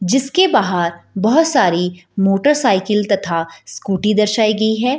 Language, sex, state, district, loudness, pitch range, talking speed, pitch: Hindi, female, Bihar, Jahanabad, -16 LUFS, 185-250 Hz, 145 wpm, 210 Hz